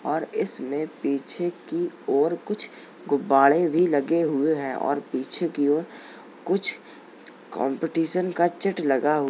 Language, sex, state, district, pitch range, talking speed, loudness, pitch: Hindi, male, Uttar Pradesh, Jalaun, 140-175 Hz, 140 wpm, -24 LUFS, 155 Hz